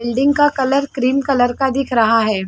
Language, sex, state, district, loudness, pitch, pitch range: Hindi, female, Chhattisgarh, Sarguja, -16 LUFS, 265 Hz, 235-275 Hz